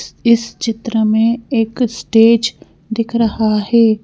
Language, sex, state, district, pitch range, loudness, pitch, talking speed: Hindi, female, Madhya Pradesh, Bhopal, 220-235 Hz, -15 LUFS, 230 Hz, 120 wpm